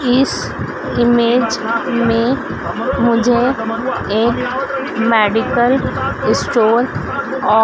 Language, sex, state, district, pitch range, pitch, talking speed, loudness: Hindi, female, Madhya Pradesh, Dhar, 230-260 Hz, 240 Hz, 65 wpm, -16 LUFS